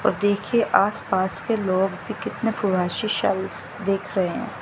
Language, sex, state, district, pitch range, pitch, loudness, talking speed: Hindi, female, Chandigarh, Chandigarh, 190-215 Hz, 195 Hz, -23 LUFS, 130 wpm